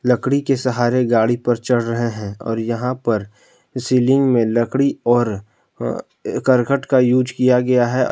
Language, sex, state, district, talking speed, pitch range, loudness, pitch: Hindi, male, Jharkhand, Palamu, 165 wpm, 115-130 Hz, -18 LUFS, 125 Hz